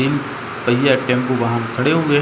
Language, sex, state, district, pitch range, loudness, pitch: Hindi, male, Uttar Pradesh, Jalaun, 120-140 Hz, -18 LUFS, 130 Hz